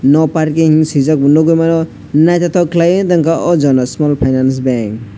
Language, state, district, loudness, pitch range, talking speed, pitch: Kokborok, Tripura, West Tripura, -12 LUFS, 130-165 Hz, 150 wpm, 155 Hz